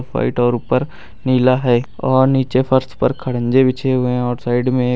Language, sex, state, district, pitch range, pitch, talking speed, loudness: Hindi, male, Uttar Pradesh, Lucknow, 120-130 Hz, 125 Hz, 205 wpm, -16 LUFS